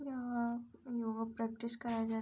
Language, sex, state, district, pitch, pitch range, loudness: Hindi, female, Uttar Pradesh, Hamirpur, 235 Hz, 225-240 Hz, -40 LUFS